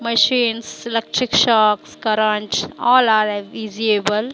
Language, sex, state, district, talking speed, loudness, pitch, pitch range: Hindi, male, Maharashtra, Mumbai Suburban, 125 wpm, -17 LUFS, 220 Hz, 215-235 Hz